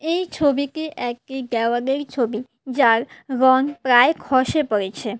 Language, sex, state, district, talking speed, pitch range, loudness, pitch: Bengali, female, Tripura, West Tripura, 115 wpm, 240-285 Hz, -20 LUFS, 260 Hz